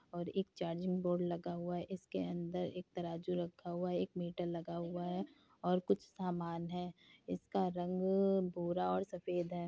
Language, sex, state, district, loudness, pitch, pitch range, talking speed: Hindi, female, Uttar Pradesh, Hamirpur, -40 LUFS, 175 Hz, 175-180 Hz, 190 wpm